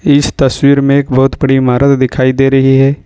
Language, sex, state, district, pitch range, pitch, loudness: Hindi, male, Jharkhand, Ranchi, 130-140 Hz, 135 Hz, -10 LUFS